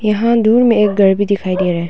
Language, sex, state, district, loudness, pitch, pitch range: Hindi, female, Arunachal Pradesh, Longding, -13 LUFS, 205 Hz, 190-225 Hz